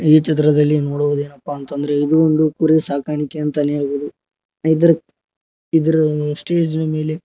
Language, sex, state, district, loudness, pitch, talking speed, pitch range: Kannada, male, Karnataka, Koppal, -17 LUFS, 150 Hz, 130 wpm, 145-160 Hz